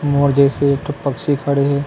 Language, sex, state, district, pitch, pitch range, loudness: Chhattisgarhi, male, Chhattisgarh, Kabirdham, 140 Hz, 140-145 Hz, -17 LUFS